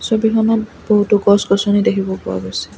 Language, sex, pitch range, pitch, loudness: Assamese, female, 190-220 Hz, 205 Hz, -16 LUFS